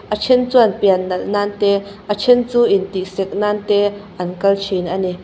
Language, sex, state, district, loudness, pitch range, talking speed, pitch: Mizo, female, Mizoram, Aizawl, -17 LUFS, 190-210 Hz, 215 wpm, 200 Hz